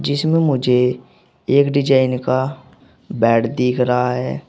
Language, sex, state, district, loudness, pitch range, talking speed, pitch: Hindi, male, Uttar Pradesh, Saharanpur, -17 LUFS, 125-140 Hz, 120 wpm, 125 Hz